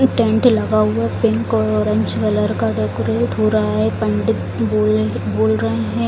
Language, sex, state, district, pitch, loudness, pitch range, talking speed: Hindi, female, Bihar, Gopalganj, 110 Hz, -17 LUFS, 105-110 Hz, 175 wpm